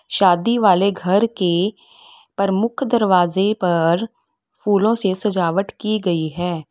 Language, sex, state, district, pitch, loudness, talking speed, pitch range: Hindi, female, Uttar Pradesh, Lalitpur, 195 Hz, -18 LUFS, 115 wpm, 180-215 Hz